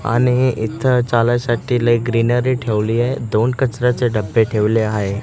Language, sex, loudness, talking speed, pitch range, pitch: Marathi, male, -17 LUFS, 135 wpm, 110-125 Hz, 120 Hz